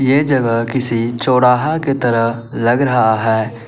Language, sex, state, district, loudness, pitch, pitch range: Hindi, male, Uttar Pradesh, Lalitpur, -15 LUFS, 120 Hz, 115-130 Hz